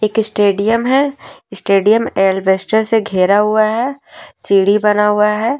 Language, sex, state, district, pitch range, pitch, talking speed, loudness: Hindi, female, Jharkhand, Deoghar, 200-225 Hz, 210 Hz, 140 wpm, -14 LUFS